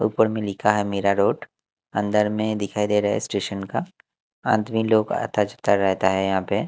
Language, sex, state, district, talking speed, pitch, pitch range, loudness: Hindi, male, Maharashtra, Mumbai Suburban, 200 wpm, 105 Hz, 100-110 Hz, -22 LUFS